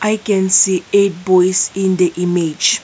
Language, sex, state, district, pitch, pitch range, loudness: English, female, Nagaland, Kohima, 185 Hz, 180-195 Hz, -14 LUFS